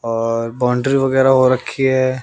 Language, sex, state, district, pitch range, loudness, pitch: Hindi, male, Haryana, Jhajjar, 115-135 Hz, -16 LUFS, 130 Hz